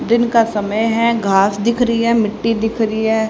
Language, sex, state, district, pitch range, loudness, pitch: Hindi, female, Haryana, Charkhi Dadri, 220-230 Hz, -16 LUFS, 225 Hz